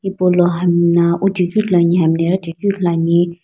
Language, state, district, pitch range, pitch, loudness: Sumi, Nagaland, Dimapur, 170-185 Hz, 175 Hz, -15 LUFS